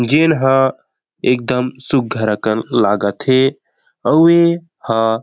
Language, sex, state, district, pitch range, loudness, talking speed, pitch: Chhattisgarhi, male, Chhattisgarh, Rajnandgaon, 115-155 Hz, -15 LUFS, 105 wpm, 130 Hz